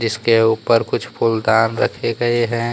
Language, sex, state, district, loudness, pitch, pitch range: Hindi, male, Jharkhand, Deoghar, -17 LUFS, 115 Hz, 110-115 Hz